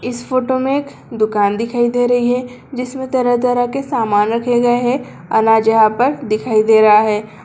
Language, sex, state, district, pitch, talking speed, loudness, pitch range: Hindi, female, Bihar, Begusarai, 240 Hz, 195 wpm, -15 LUFS, 220-250 Hz